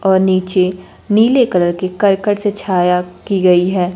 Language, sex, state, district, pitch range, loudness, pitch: Hindi, female, Bihar, Kaimur, 180-200 Hz, -14 LUFS, 185 Hz